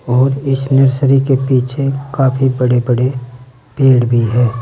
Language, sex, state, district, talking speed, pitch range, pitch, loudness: Hindi, male, Uttar Pradesh, Saharanpur, 145 wpm, 125-135 Hz, 130 Hz, -13 LUFS